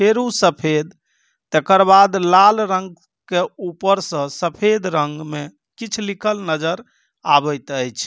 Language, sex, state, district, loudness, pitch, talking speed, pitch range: Maithili, male, Bihar, Samastipur, -17 LUFS, 180 Hz, 135 wpm, 150-195 Hz